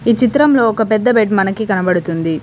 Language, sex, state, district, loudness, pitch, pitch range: Telugu, female, Telangana, Komaram Bheem, -14 LUFS, 215 Hz, 185-235 Hz